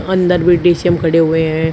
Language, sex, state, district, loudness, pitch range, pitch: Hindi, male, Uttar Pradesh, Shamli, -13 LUFS, 160-175 Hz, 170 Hz